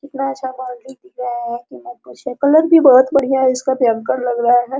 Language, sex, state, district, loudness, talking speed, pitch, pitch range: Hindi, female, Bihar, Araria, -15 LUFS, 235 wpm, 260 Hz, 245-270 Hz